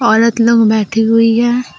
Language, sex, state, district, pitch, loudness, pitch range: Hindi, female, Jharkhand, Deoghar, 230 Hz, -11 LUFS, 225-235 Hz